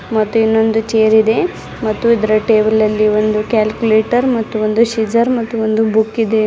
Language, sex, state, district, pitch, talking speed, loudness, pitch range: Kannada, female, Karnataka, Bidar, 220 Hz, 150 wpm, -14 LUFS, 215-225 Hz